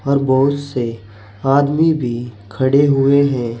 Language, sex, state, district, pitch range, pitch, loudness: Hindi, male, Uttar Pradesh, Saharanpur, 120-140 Hz, 135 Hz, -16 LUFS